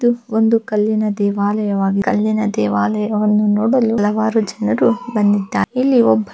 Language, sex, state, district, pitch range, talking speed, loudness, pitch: Kannada, female, Karnataka, Bellary, 205-220 Hz, 125 wpm, -16 LUFS, 210 Hz